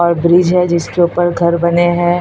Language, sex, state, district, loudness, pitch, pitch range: Hindi, male, Maharashtra, Mumbai Suburban, -12 LUFS, 175 Hz, 170-175 Hz